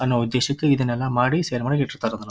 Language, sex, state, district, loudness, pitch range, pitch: Kannada, male, Karnataka, Dharwad, -22 LUFS, 120-140 Hz, 125 Hz